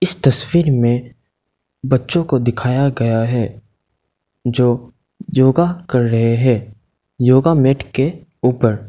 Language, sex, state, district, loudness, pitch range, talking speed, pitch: Hindi, male, Arunachal Pradesh, Lower Dibang Valley, -16 LUFS, 115-135 Hz, 120 wpm, 125 Hz